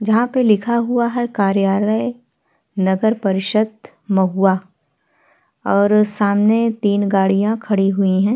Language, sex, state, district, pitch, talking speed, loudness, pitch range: Hindi, female, Bihar, Vaishali, 205 Hz, 115 wpm, -17 LUFS, 195-225 Hz